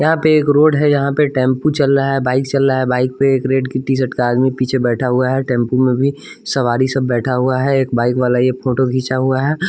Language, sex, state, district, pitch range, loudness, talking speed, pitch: Hindi, male, Bihar, West Champaran, 125-135 Hz, -15 LUFS, 265 wpm, 130 Hz